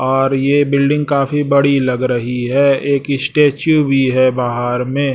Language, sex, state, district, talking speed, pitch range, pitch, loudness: Hindi, male, Chhattisgarh, Raipur, 165 wpm, 130-140 Hz, 135 Hz, -14 LUFS